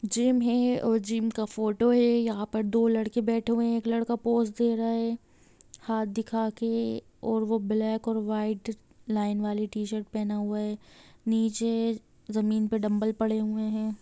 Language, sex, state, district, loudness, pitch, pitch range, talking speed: Hindi, female, Jharkhand, Jamtara, -28 LUFS, 220 Hz, 215-230 Hz, 175 wpm